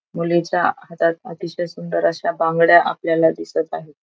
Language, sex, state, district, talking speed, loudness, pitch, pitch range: Marathi, female, Maharashtra, Aurangabad, 135 wpm, -19 LUFS, 170 Hz, 160-170 Hz